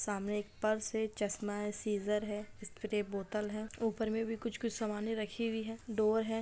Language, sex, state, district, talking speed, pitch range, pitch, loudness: Hindi, female, Bihar, Gopalganj, 195 wpm, 210-225 Hz, 215 Hz, -37 LUFS